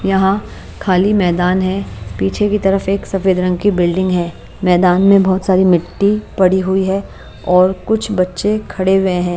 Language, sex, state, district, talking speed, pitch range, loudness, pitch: Hindi, female, Bihar, West Champaran, 175 wpm, 180-195 Hz, -14 LUFS, 190 Hz